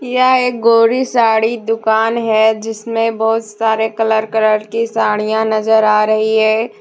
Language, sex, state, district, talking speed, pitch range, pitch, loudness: Hindi, female, Jharkhand, Deoghar, 150 wpm, 220-230 Hz, 220 Hz, -14 LUFS